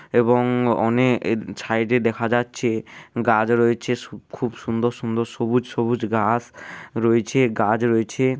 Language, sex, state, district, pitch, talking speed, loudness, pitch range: Bengali, male, West Bengal, Dakshin Dinajpur, 115 Hz, 135 wpm, -21 LUFS, 115-120 Hz